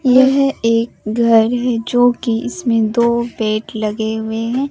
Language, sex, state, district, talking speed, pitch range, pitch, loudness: Hindi, male, Bihar, Katihar, 155 wpm, 220-245 Hz, 230 Hz, -16 LUFS